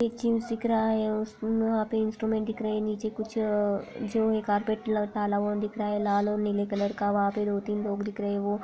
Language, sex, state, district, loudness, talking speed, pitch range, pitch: Hindi, female, Bihar, Purnia, -28 LUFS, 250 wpm, 205-220 Hz, 215 Hz